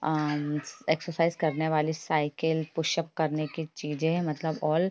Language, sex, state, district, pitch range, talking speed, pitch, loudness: Hindi, female, Bihar, Jamui, 155-160 Hz, 145 wpm, 160 Hz, -29 LUFS